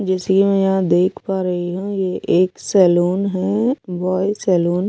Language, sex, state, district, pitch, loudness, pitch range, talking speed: Hindi, female, Bihar, Kaimur, 185 Hz, -18 LUFS, 180-195 Hz, 170 wpm